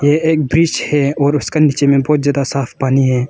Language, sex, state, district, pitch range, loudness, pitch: Hindi, male, Arunachal Pradesh, Longding, 135-150 Hz, -14 LUFS, 140 Hz